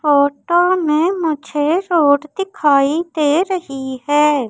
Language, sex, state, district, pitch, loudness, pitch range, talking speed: Hindi, female, Madhya Pradesh, Umaria, 300 Hz, -16 LUFS, 285-345 Hz, 105 wpm